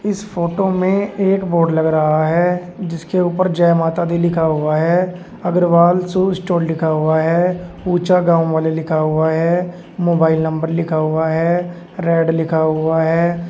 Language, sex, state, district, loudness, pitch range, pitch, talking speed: Hindi, male, Uttar Pradesh, Shamli, -16 LUFS, 160-180 Hz, 170 Hz, 165 wpm